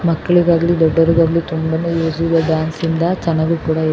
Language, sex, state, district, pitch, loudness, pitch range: Kannada, female, Karnataka, Bellary, 165 Hz, -16 LUFS, 160-170 Hz